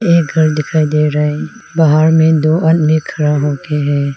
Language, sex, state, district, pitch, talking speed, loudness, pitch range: Hindi, female, Arunachal Pradesh, Lower Dibang Valley, 155 Hz, 200 wpm, -13 LUFS, 150-160 Hz